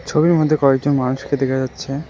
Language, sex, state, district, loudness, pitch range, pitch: Bengali, male, West Bengal, Alipurduar, -18 LUFS, 130-155 Hz, 140 Hz